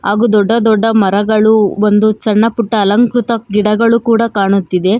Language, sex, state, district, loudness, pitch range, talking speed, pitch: Kannada, female, Karnataka, Bangalore, -11 LUFS, 205-230 Hz, 120 wpm, 215 Hz